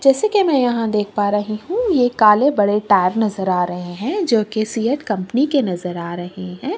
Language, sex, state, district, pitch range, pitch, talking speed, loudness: Hindi, female, Chhattisgarh, Kabirdham, 190-270 Hz, 215 Hz, 230 wpm, -18 LUFS